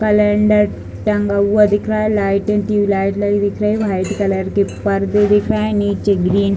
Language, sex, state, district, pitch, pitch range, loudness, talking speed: Hindi, female, Uttar Pradesh, Deoria, 205 Hz, 200-210 Hz, -16 LUFS, 190 wpm